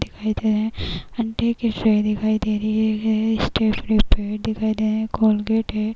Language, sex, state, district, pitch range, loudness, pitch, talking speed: Hindi, female, Uttar Pradesh, Jyotiba Phule Nagar, 215-220 Hz, -21 LUFS, 220 Hz, 220 wpm